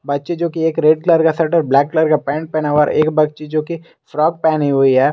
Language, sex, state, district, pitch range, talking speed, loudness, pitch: Hindi, male, Jharkhand, Garhwa, 150-160 Hz, 255 wpm, -15 LUFS, 155 Hz